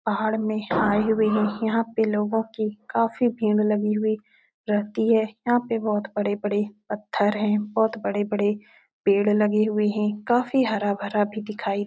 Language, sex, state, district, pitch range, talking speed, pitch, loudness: Hindi, female, Uttar Pradesh, Etah, 210-220 Hz, 160 wpm, 210 Hz, -24 LUFS